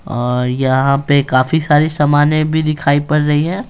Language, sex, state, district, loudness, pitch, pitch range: Hindi, male, Bihar, Patna, -14 LUFS, 145 Hz, 135-155 Hz